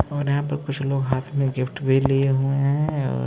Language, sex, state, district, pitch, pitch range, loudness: Hindi, male, Maharashtra, Mumbai Suburban, 135 Hz, 135-140 Hz, -22 LUFS